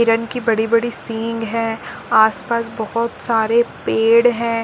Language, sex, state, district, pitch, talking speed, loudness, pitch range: Hindi, female, Chhattisgarh, Bilaspur, 230 Hz, 140 wpm, -18 LUFS, 225-235 Hz